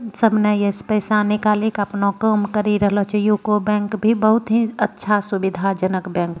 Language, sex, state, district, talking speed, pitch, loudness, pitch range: Angika, female, Bihar, Bhagalpur, 185 wpm, 210 Hz, -19 LUFS, 200-215 Hz